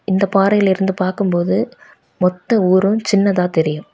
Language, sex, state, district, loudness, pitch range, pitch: Tamil, female, Tamil Nadu, Kanyakumari, -16 LUFS, 180-200 Hz, 190 Hz